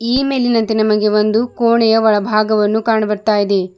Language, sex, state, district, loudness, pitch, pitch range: Kannada, female, Karnataka, Bidar, -14 LUFS, 220 Hz, 210-230 Hz